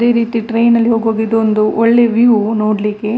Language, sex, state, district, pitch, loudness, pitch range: Kannada, female, Karnataka, Dakshina Kannada, 225 Hz, -13 LUFS, 215-235 Hz